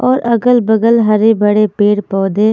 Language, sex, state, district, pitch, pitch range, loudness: Hindi, female, Haryana, Charkhi Dadri, 215 Hz, 210-230 Hz, -11 LUFS